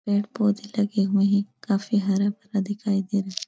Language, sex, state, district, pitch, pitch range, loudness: Hindi, female, Uttar Pradesh, Etah, 200 Hz, 200-205 Hz, -24 LUFS